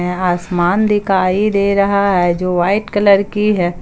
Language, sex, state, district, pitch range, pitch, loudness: Hindi, female, Jharkhand, Palamu, 180-205 Hz, 195 Hz, -14 LUFS